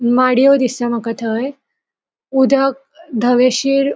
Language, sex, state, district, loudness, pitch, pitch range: Konkani, female, Goa, North and South Goa, -15 LUFS, 255 Hz, 240-275 Hz